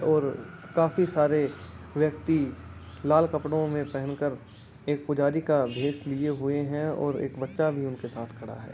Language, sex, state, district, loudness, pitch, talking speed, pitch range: Hindi, male, Rajasthan, Churu, -28 LUFS, 145 Hz, 160 wpm, 130-150 Hz